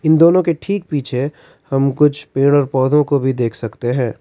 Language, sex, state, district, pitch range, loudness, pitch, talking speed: Hindi, male, Karnataka, Bangalore, 130-155 Hz, -16 LUFS, 140 Hz, 215 wpm